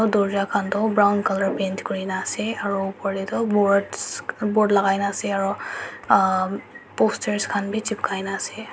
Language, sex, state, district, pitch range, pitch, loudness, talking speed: Nagamese, male, Nagaland, Dimapur, 195-210 Hz, 200 Hz, -22 LUFS, 170 wpm